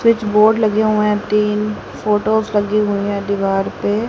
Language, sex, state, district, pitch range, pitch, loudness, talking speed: Hindi, female, Haryana, Rohtak, 205-215 Hz, 210 Hz, -16 LUFS, 175 wpm